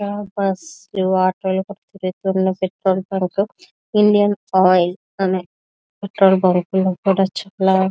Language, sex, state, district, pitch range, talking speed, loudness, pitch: Telugu, female, Andhra Pradesh, Visakhapatnam, 185-200 Hz, 85 wpm, -18 LUFS, 190 Hz